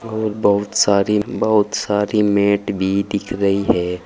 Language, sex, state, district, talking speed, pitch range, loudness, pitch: Hindi, male, Uttar Pradesh, Saharanpur, 150 wpm, 100-105 Hz, -18 LUFS, 100 Hz